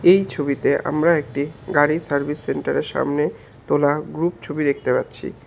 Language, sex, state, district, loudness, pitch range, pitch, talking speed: Bengali, male, West Bengal, Alipurduar, -21 LUFS, 140-155 Hz, 145 Hz, 145 wpm